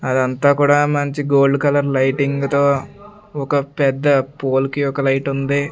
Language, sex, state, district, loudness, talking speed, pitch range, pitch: Telugu, male, Andhra Pradesh, Sri Satya Sai, -17 LUFS, 145 wpm, 135-145 Hz, 140 Hz